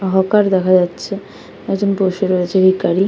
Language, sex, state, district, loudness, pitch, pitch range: Bengali, female, West Bengal, Kolkata, -15 LUFS, 190 Hz, 185-195 Hz